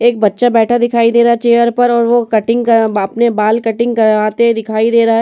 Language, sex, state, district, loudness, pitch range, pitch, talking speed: Hindi, female, Uttar Pradesh, Etah, -12 LUFS, 220-235 Hz, 230 Hz, 240 wpm